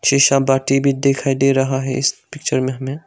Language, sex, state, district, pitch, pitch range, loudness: Hindi, male, Arunachal Pradesh, Longding, 135 Hz, 135-140 Hz, -17 LUFS